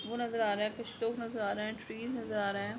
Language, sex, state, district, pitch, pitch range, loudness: Hindi, female, Jharkhand, Jamtara, 225 Hz, 210-235 Hz, -36 LUFS